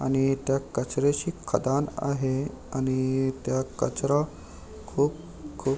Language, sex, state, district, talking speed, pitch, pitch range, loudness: Marathi, male, Maharashtra, Aurangabad, 115 wpm, 135 Hz, 130-140 Hz, -27 LUFS